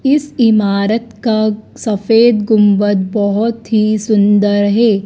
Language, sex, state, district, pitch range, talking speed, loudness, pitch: Hindi, female, Madhya Pradesh, Dhar, 205-230 Hz, 105 wpm, -13 LUFS, 215 Hz